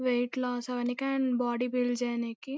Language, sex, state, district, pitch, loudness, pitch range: Telugu, female, Andhra Pradesh, Anantapur, 245 Hz, -31 LUFS, 245-255 Hz